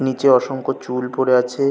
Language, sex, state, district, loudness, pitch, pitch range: Bengali, male, West Bengal, North 24 Parganas, -18 LUFS, 130 Hz, 125-135 Hz